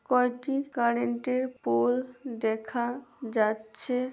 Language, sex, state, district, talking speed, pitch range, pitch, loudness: Bengali, female, West Bengal, Paschim Medinipur, 70 wpm, 230-255 Hz, 245 Hz, -29 LUFS